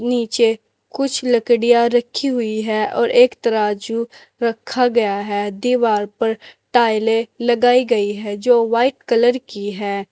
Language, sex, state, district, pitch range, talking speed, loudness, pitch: Hindi, female, Uttar Pradesh, Saharanpur, 215-245 Hz, 135 wpm, -17 LUFS, 230 Hz